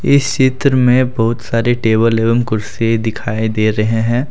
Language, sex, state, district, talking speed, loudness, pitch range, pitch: Hindi, male, Jharkhand, Deoghar, 165 wpm, -14 LUFS, 110-125 Hz, 115 Hz